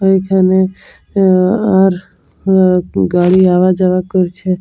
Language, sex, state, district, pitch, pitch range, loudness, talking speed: Bengali, female, West Bengal, Jalpaiguri, 185 Hz, 180-190 Hz, -12 LUFS, 130 wpm